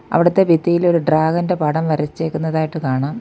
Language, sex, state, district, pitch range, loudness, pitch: Malayalam, female, Kerala, Kollam, 155-170 Hz, -17 LUFS, 160 Hz